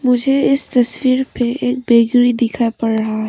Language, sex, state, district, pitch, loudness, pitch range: Hindi, female, Arunachal Pradesh, Papum Pare, 245 Hz, -15 LUFS, 235-255 Hz